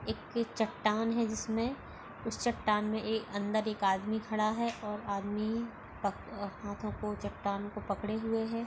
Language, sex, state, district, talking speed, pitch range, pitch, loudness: Hindi, female, Goa, North and South Goa, 150 wpm, 205-225 Hz, 215 Hz, -35 LUFS